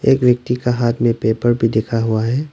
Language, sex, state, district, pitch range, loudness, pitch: Hindi, male, Arunachal Pradesh, Lower Dibang Valley, 115-125 Hz, -17 LUFS, 120 Hz